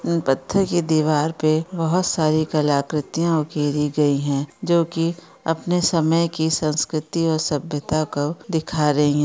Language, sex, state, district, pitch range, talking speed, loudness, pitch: Hindi, female, Rajasthan, Churu, 150-165 Hz, 150 wpm, -21 LUFS, 155 Hz